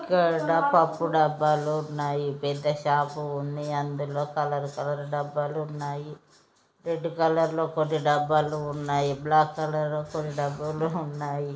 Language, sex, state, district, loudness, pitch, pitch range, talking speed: Telugu, male, Andhra Pradesh, Guntur, -27 LUFS, 150 Hz, 145-155 Hz, 125 wpm